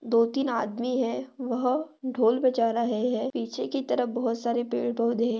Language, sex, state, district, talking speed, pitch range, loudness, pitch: Hindi, female, Maharashtra, Dhule, 190 wpm, 230-255 Hz, -27 LUFS, 240 Hz